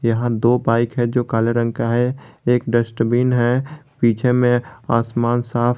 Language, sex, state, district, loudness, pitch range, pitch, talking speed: Hindi, male, Jharkhand, Garhwa, -18 LUFS, 115-125 Hz, 120 Hz, 175 wpm